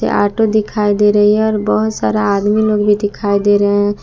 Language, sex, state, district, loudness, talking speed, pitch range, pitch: Hindi, female, Jharkhand, Palamu, -13 LUFS, 225 wpm, 200-210 Hz, 205 Hz